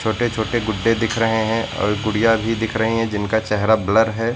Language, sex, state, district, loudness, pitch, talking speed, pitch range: Hindi, male, Uttar Pradesh, Lucknow, -19 LUFS, 110 Hz, 220 wpm, 110-115 Hz